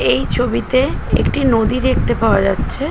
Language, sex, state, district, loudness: Bengali, female, West Bengal, Jhargram, -16 LUFS